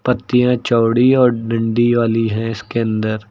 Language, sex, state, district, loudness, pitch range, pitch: Hindi, male, Uttar Pradesh, Lucknow, -16 LUFS, 115-125 Hz, 115 Hz